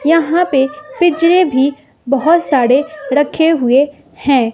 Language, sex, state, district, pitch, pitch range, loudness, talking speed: Hindi, female, Bihar, West Champaran, 290 Hz, 270-330 Hz, -13 LUFS, 120 wpm